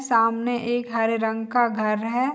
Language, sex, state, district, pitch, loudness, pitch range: Hindi, female, Bihar, Saharsa, 230 Hz, -23 LUFS, 225-240 Hz